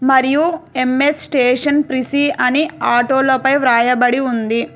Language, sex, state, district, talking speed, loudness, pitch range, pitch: Telugu, female, Telangana, Hyderabad, 115 wpm, -15 LUFS, 250-285 Hz, 265 Hz